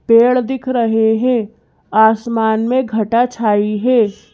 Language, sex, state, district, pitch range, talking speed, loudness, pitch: Hindi, female, Madhya Pradesh, Bhopal, 220-245 Hz, 125 wpm, -15 LUFS, 230 Hz